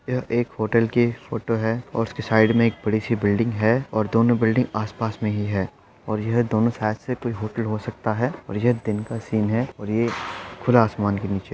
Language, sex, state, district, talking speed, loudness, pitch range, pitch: Hindi, male, Uttar Pradesh, Etah, 240 wpm, -23 LUFS, 110-120 Hz, 115 Hz